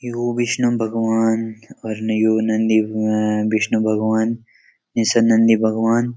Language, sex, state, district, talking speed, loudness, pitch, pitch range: Garhwali, male, Uttarakhand, Uttarkashi, 125 wpm, -18 LUFS, 110 Hz, 110-115 Hz